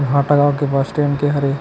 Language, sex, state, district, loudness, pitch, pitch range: Chhattisgarhi, male, Chhattisgarh, Kabirdham, -16 LUFS, 145 Hz, 140-145 Hz